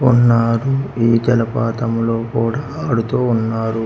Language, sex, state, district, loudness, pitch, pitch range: Telugu, male, Andhra Pradesh, Manyam, -17 LUFS, 115 Hz, 115-120 Hz